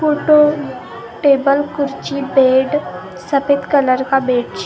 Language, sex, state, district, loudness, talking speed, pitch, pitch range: Hindi, female, Maharashtra, Gondia, -15 LUFS, 115 wpm, 280 Hz, 265-295 Hz